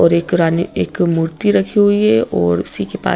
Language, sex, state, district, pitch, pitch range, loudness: Hindi, female, Madhya Pradesh, Bhopal, 170 Hz, 160-200 Hz, -15 LUFS